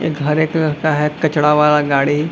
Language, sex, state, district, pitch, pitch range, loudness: Hindi, male, Bihar, Gaya, 150 Hz, 150-155 Hz, -15 LUFS